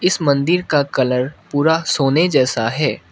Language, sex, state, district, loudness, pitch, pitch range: Hindi, male, Mizoram, Aizawl, -17 LUFS, 145 Hz, 135-165 Hz